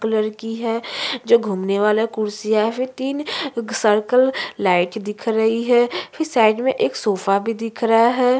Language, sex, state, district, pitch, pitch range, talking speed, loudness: Hindi, female, Uttarakhand, Tehri Garhwal, 225 Hz, 215-245 Hz, 180 wpm, -19 LUFS